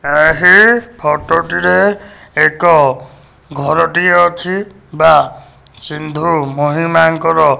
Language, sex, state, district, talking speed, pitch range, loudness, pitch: Odia, male, Odisha, Nuapada, 80 wpm, 150-180 Hz, -11 LUFS, 165 Hz